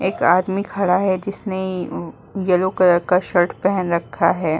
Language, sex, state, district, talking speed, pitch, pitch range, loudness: Hindi, female, Uttar Pradesh, Muzaffarnagar, 155 wpm, 185 Hz, 175-190 Hz, -19 LUFS